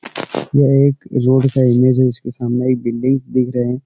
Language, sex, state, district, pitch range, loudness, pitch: Hindi, male, Uttar Pradesh, Etah, 125-135 Hz, -15 LUFS, 130 Hz